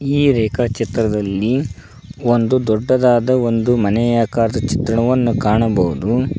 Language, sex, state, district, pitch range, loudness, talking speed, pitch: Kannada, male, Karnataka, Koppal, 110-125 Hz, -16 LUFS, 85 wpm, 115 Hz